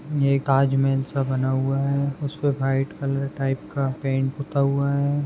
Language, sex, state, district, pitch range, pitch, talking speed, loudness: Hindi, male, Maharashtra, Pune, 135-140 Hz, 140 Hz, 170 wpm, -23 LUFS